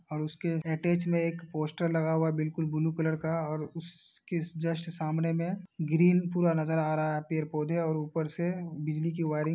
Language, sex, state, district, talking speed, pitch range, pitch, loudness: Hindi, male, Uttar Pradesh, Hamirpur, 200 wpm, 155-170 Hz, 160 Hz, -31 LUFS